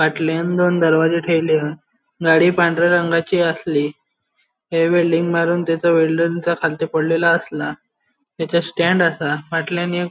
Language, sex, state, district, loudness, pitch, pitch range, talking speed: Konkani, male, Goa, North and South Goa, -18 LUFS, 165 Hz, 160-170 Hz, 125 wpm